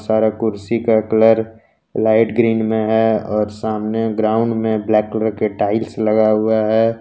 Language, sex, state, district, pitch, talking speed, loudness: Hindi, male, Jharkhand, Ranchi, 110 Hz, 160 wpm, -17 LUFS